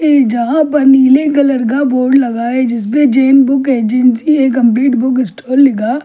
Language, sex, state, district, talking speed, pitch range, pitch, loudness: Hindi, female, Delhi, New Delhi, 190 wpm, 245-275 Hz, 265 Hz, -11 LUFS